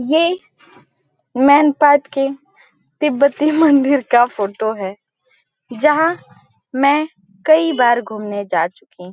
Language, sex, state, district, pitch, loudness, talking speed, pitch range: Hindi, female, Chhattisgarh, Balrampur, 275 Hz, -15 LUFS, 110 wpm, 215-295 Hz